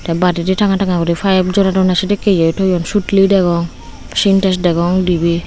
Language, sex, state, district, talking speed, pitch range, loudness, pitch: Chakma, female, Tripura, Unakoti, 155 wpm, 170-195 Hz, -14 LUFS, 185 Hz